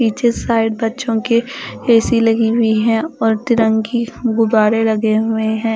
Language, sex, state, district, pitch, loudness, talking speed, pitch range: Hindi, female, Punjab, Fazilka, 225 Hz, -15 LUFS, 145 wpm, 220-235 Hz